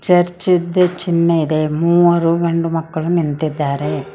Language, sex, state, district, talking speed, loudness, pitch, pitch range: Kannada, female, Karnataka, Koppal, 115 wpm, -16 LUFS, 170 Hz, 160-175 Hz